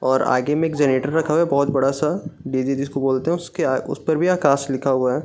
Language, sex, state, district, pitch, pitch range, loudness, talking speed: Hindi, male, Bihar, Gaya, 140 Hz, 135-160 Hz, -20 LUFS, 240 wpm